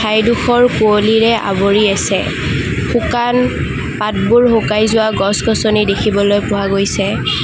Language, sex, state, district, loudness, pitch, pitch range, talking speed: Assamese, female, Assam, Kamrup Metropolitan, -13 LUFS, 215 Hz, 200-225 Hz, 105 wpm